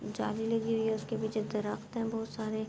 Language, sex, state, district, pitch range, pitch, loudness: Urdu, female, Andhra Pradesh, Anantapur, 215-225 Hz, 220 Hz, -34 LUFS